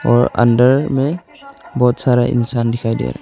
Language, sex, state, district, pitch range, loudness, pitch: Hindi, male, Arunachal Pradesh, Longding, 120-135 Hz, -15 LUFS, 125 Hz